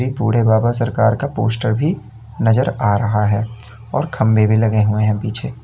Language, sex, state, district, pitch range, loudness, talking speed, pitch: Hindi, male, Uttar Pradesh, Lalitpur, 110-120 Hz, -17 LUFS, 180 wpm, 115 Hz